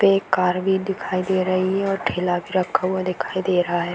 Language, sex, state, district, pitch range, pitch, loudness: Hindi, female, Bihar, Darbhanga, 180-190 Hz, 185 Hz, -21 LUFS